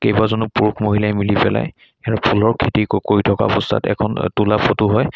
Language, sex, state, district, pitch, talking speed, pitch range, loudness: Assamese, male, Assam, Sonitpur, 105 Hz, 185 wpm, 105-110 Hz, -17 LUFS